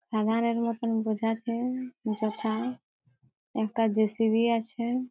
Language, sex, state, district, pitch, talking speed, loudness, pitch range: Bengali, female, West Bengal, Jhargram, 225 Hz, 70 wpm, -29 LUFS, 220-235 Hz